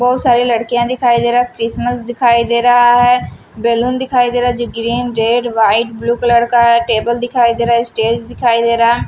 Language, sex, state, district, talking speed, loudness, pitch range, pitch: Hindi, female, Maharashtra, Washim, 240 wpm, -13 LUFS, 235-245 Hz, 235 Hz